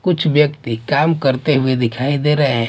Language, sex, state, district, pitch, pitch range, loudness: Hindi, male, Maharashtra, Washim, 140 Hz, 125-150 Hz, -16 LUFS